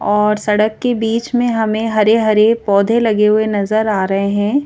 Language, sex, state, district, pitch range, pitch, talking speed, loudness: Hindi, female, Madhya Pradesh, Bhopal, 210-225 Hz, 215 Hz, 180 wpm, -14 LUFS